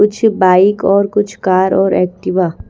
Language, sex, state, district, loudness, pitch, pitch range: Hindi, female, Haryana, Rohtak, -13 LUFS, 195 Hz, 185-205 Hz